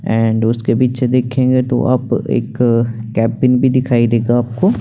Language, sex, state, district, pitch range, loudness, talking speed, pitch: Hindi, male, Chandigarh, Chandigarh, 115-125 Hz, -15 LUFS, 160 wpm, 120 Hz